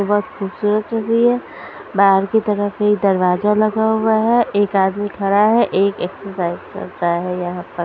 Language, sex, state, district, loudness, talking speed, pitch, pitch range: Hindi, female, Punjab, Pathankot, -17 LUFS, 185 wpm, 205 Hz, 190-220 Hz